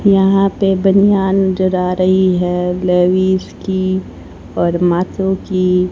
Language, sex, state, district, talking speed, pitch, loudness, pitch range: Hindi, female, Haryana, Rohtak, 120 wpm, 185 Hz, -14 LUFS, 180-190 Hz